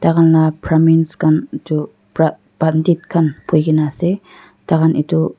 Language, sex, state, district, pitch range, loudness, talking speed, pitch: Nagamese, female, Nagaland, Dimapur, 155-165 Hz, -15 LUFS, 120 wpm, 160 Hz